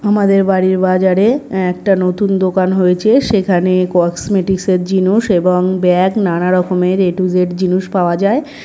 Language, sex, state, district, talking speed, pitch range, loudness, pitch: Bengali, male, West Bengal, North 24 Parganas, 140 wpm, 180-195 Hz, -13 LUFS, 185 Hz